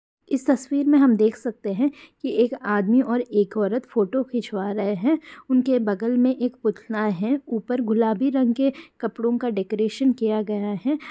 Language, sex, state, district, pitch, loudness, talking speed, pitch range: Hindi, female, Bihar, Darbhanga, 240 Hz, -23 LUFS, 180 wpm, 215-265 Hz